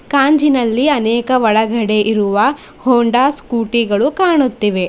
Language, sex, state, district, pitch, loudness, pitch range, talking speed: Kannada, female, Karnataka, Bidar, 235 Hz, -14 LUFS, 220-275 Hz, 100 wpm